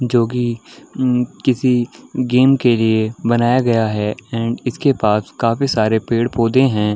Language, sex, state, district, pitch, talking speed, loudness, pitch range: Hindi, male, Chhattisgarh, Bilaspur, 120 Hz, 145 wpm, -17 LUFS, 115-130 Hz